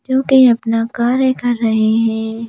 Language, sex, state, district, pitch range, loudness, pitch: Hindi, female, Madhya Pradesh, Bhopal, 225-255 Hz, -14 LUFS, 235 Hz